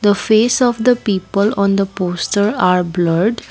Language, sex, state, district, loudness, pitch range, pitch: English, female, Assam, Kamrup Metropolitan, -15 LUFS, 180-220 Hz, 200 Hz